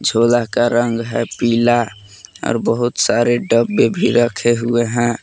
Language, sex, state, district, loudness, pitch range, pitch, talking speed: Hindi, male, Jharkhand, Palamu, -16 LUFS, 115-120 Hz, 120 Hz, 135 wpm